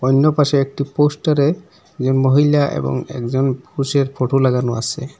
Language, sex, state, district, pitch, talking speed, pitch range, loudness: Bengali, male, Assam, Hailakandi, 135 Hz, 140 wpm, 130-145 Hz, -17 LUFS